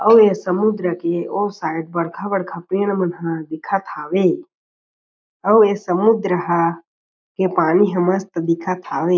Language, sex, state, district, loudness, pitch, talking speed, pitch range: Chhattisgarhi, male, Chhattisgarh, Jashpur, -19 LUFS, 180 Hz, 150 wpm, 170-200 Hz